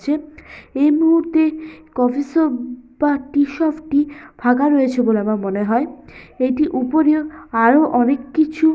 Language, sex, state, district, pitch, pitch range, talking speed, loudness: Bengali, female, West Bengal, Purulia, 290 Hz, 250-310 Hz, 135 wpm, -18 LUFS